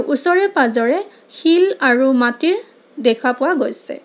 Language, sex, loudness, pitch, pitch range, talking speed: Assamese, female, -16 LUFS, 270 Hz, 245-355 Hz, 120 wpm